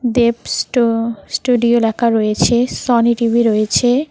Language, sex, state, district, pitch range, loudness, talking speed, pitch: Bengali, female, West Bengal, Cooch Behar, 230-240 Hz, -15 LUFS, 115 wpm, 235 Hz